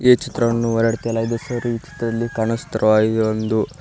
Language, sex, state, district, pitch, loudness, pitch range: Kannada, male, Karnataka, Koppal, 115 Hz, -20 LUFS, 110-120 Hz